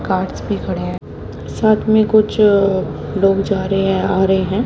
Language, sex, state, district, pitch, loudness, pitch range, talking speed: Hindi, female, Haryana, Jhajjar, 195 Hz, -16 LUFS, 190-215 Hz, 195 wpm